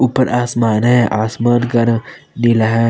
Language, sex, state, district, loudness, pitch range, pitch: Hindi, male, Jharkhand, Palamu, -15 LUFS, 115-120 Hz, 120 Hz